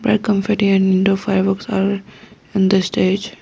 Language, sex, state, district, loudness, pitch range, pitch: English, female, Arunachal Pradesh, Lower Dibang Valley, -17 LUFS, 195-210 Hz, 195 Hz